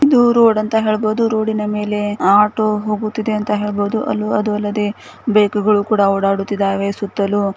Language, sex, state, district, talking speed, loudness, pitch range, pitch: Kannada, female, Karnataka, Gulbarga, 145 wpm, -16 LUFS, 205-215 Hz, 210 Hz